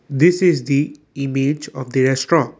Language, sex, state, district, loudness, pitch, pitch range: English, male, Assam, Kamrup Metropolitan, -18 LUFS, 140 Hz, 135-150 Hz